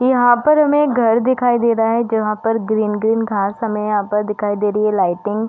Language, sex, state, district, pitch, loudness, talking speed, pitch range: Hindi, female, Uttar Pradesh, Deoria, 225 Hz, -16 LUFS, 240 wpm, 210-240 Hz